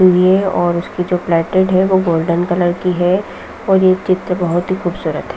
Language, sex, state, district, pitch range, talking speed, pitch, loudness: Hindi, female, Bihar, East Champaran, 175-185 Hz, 200 wpm, 180 Hz, -15 LUFS